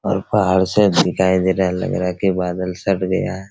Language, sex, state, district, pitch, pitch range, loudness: Hindi, male, Bihar, Araria, 95 Hz, 90-95 Hz, -18 LUFS